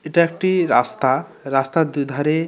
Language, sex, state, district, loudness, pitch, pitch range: Bengali, male, West Bengal, North 24 Parganas, -19 LUFS, 155 Hz, 140-170 Hz